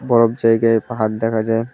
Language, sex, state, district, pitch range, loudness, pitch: Bengali, male, West Bengal, Cooch Behar, 110-115 Hz, -17 LUFS, 115 Hz